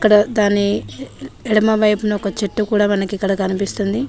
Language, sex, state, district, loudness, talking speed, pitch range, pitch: Telugu, female, Telangana, Mahabubabad, -17 LUFS, 130 wpm, 200-215 Hz, 205 Hz